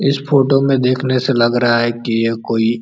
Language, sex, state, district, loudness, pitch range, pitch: Hindi, male, Uttar Pradesh, Ghazipur, -15 LUFS, 115-135 Hz, 120 Hz